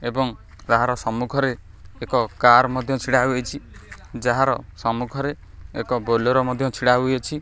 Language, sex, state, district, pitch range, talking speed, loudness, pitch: Odia, male, Odisha, Khordha, 115-130 Hz, 120 wpm, -21 LUFS, 125 Hz